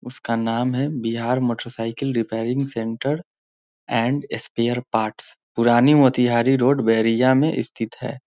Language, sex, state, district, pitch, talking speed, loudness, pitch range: Hindi, male, Bihar, Muzaffarpur, 120 Hz, 140 wpm, -21 LUFS, 115-130 Hz